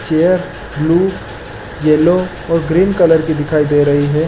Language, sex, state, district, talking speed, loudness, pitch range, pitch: Hindi, male, Chhattisgarh, Balrampur, 170 wpm, -13 LUFS, 150-175 Hz, 160 Hz